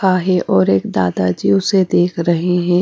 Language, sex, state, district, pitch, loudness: Hindi, female, Punjab, Fazilka, 175 Hz, -15 LUFS